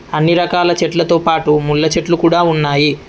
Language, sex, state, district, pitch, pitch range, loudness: Telugu, male, Telangana, Adilabad, 165 Hz, 150-170 Hz, -13 LUFS